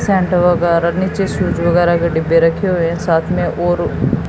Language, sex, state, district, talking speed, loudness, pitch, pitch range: Hindi, female, Haryana, Jhajjar, 180 wpm, -15 LUFS, 175 Hz, 170-180 Hz